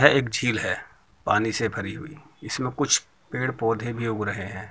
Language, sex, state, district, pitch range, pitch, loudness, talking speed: Hindi, female, Uttar Pradesh, Muzaffarnagar, 105-130 Hz, 115 Hz, -26 LUFS, 205 wpm